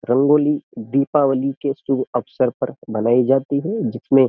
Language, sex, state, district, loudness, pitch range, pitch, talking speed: Hindi, male, Uttar Pradesh, Jyotiba Phule Nagar, -19 LUFS, 130-145 Hz, 135 Hz, 155 wpm